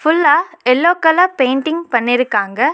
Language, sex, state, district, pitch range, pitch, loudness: Tamil, female, Tamil Nadu, Nilgiris, 250-335 Hz, 310 Hz, -14 LUFS